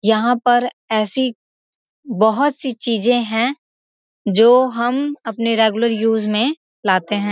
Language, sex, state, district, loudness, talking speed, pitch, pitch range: Hindi, female, Bihar, Gopalganj, -17 LUFS, 125 wpm, 235 Hz, 220-250 Hz